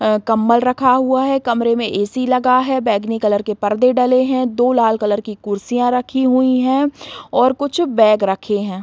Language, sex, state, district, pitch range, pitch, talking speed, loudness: Hindi, female, Bihar, Saran, 215-255 Hz, 245 Hz, 195 wpm, -16 LUFS